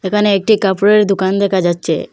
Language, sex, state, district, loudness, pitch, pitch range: Bengali, female, Assam, Hailakandi, -13 LUFS, 195 Hz, 190-210 Hz